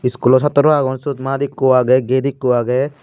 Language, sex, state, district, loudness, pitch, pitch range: Chakma, male, Tripura, Unakoti, -15 LUFS, 130 Hz, 130-140 Hz